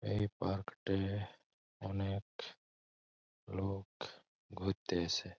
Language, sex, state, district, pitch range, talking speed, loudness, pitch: Bengali, male, West Bengal, Malda, 95-100 Hz, 80 wpm, -40 LUFS, 95 Hz